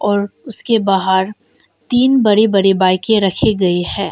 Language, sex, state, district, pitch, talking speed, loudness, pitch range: Hindi, female, Arunachal Pradesh, Longding, 200 Hz, 145 wpm, -14 LUFS, 190-220 Hz